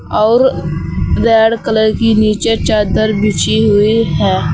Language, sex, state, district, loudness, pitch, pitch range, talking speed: Hindi, female, Uttar Pradesh, Saharanpur, -12 LUFS, 220 Hz, 215-225 Hz, 120 wpm